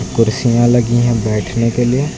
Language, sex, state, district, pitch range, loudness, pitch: Hindi, male, Uttar Pradesh, Lucknow, 115-120 Hz, -14 LUFS, 120 Hz